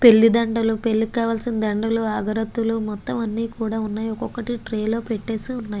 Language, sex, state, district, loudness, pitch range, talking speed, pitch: Telugu, female, Andhra Pradesh, Guntur, -22 LUFS, 220-230 Hz, 105 wpm, 225 Hz